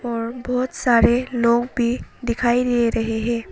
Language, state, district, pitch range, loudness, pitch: Hindi, Arunachal Pradesh, Papum Pare, 235-245 Hz, -20 LUFS, 240 Hz